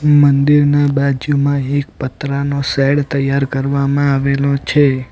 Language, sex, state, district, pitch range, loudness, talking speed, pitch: Gujarati, male, Gujarat, Valsad, 140-145 Hz, -15 LUFS, 105 wpm, 140 Hz